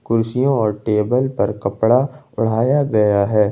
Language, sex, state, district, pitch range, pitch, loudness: Hindi, male, Jharkhand, Ranchi, 105-130 Hz, 115 Hz, -17 LUFS